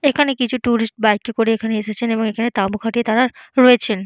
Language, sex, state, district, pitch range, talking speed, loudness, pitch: Bengali, female, West Bengal, Purulia, 220-245 Hz, 205 wpm, -17 LUFS, 230 Hz